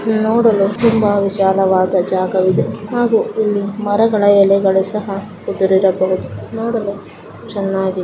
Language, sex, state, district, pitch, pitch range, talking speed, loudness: Kannada, female, Karnataka, Mysore, 200 Hz, 190-215 Hz, 95 wpm, -15 LUFS